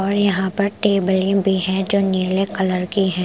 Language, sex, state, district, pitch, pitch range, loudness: Hindi, female, Punjab, Pathankot, 195 Hz, 190-200 Hz, -19 LUFS